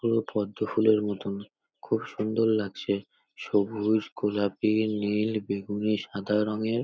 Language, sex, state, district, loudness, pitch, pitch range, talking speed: Bengali, male, West Bengal, North 24 Parganas, -28 LUFS, 105 Hz, 105-110 Hz, 125 wpm